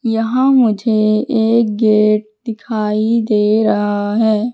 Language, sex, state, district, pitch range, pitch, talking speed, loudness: Hindi, female, Madhya Pradesh, Katni, 215-230 Hz, 220 Hz, 105 wpm, -14 LUFS